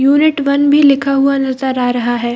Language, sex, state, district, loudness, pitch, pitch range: Hindi, female, Bihar, Samastipur, -13 LUFS, 275 Hz, 255-280 Hz